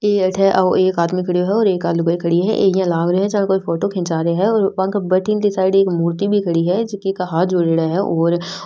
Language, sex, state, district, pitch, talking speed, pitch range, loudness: Rajasthani, female, Rajasthan, Nagaur, 185 Hz, 265 wpm, 170-195 Hz, -17 LUFS